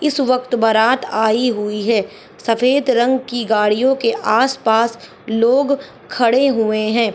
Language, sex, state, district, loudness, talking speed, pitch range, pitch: Hindi, female, Rajasthan, Churu, -16 LUFS, 145 wpm, 220-260 Hz, 235 Hz